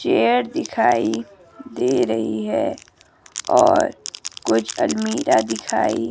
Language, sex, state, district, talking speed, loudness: Hindi, female, Himachal Pradesh, Shimla, 90 wpm, -20 LUFS